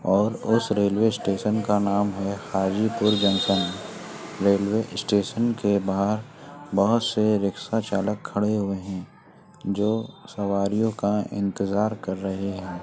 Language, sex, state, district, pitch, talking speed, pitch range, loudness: Hindi, male, Uttar Pradesh, Etah, 100 Hz, 125 wpm, 100-110 Hz, -24 LUFS